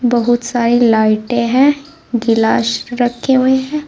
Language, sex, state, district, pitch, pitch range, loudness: Hindi, female, Uttar Pradesh, Saharanpur, 240 Hz, 235-260 Hz, -14 LUFS